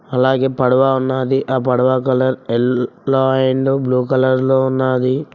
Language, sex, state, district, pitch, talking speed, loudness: Telugu, male, Telangana, Mahabubabad, 130 Hz, 135 wpm, -16 LUFS